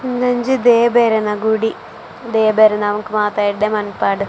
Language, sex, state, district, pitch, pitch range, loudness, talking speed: Tulu, female, Karnataka, Dakshina Kannada, 220 Hz, 210-235 Hz, -15 LUFS, 125 wpm